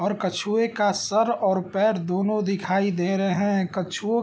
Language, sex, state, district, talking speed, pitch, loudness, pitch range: Hindi, male, Bihar, Gopalganj, 185 wpm, 200 Hz, -24 LUFS, 185-210 Hz